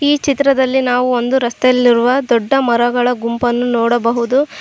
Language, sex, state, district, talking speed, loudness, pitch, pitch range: Kannada, female, Karnataka, Koppal, 115 wpm, -14 LUFS, 245 Hz, 240-265 Hz